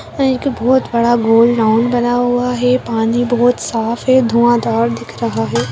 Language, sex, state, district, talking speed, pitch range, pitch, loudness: Hindi, female, Bihar, Jahanabad, 190 wpm, 230-245 Hz, 240 Hz, -14 LUFS